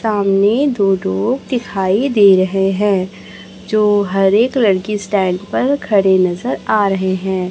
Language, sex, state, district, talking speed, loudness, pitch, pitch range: Hindi, male, Chhattisgarh, Raipur, 145 wpm, -15 LUFS, 200 Hz, 190-215 Hz